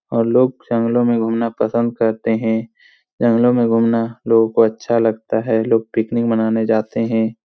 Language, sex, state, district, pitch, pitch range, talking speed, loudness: Hindi, male, Bihar, Supaul, 115 Hz, 110-115 Hz, 170 wpm, -17 LUFS